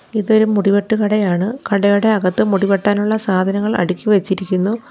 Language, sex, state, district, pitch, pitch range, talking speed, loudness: Malayalam, female, Kerala, Kollam, 205 Hz, 190-215 Hz, 120 wpm, -16 LUFS